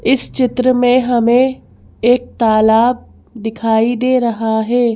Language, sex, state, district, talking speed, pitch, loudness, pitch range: Hindi, female, Madhya Pradesh, Bhopal, 110 wpm, 240 Hz, -14 LUFS, 225-250 Hz